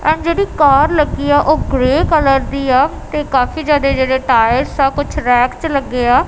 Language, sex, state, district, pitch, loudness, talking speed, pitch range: Punjabi, female, Punjab, Kapurthala, 275 Hz, -14 LUFS, 200 wpm, 260-305 Hz